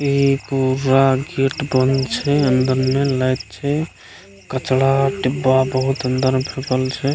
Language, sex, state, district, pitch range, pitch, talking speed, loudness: Maithili, male, Bihar, Begusarai, 130-135 Hz, 130 Hz, 145 wpm, -18 LUFS